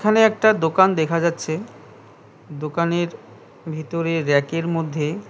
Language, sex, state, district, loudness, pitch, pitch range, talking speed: Bengali, male, West Bengal, Cooch Behar, -20 LUFS, 165 Hz, 150-170 Hz, 125 wpm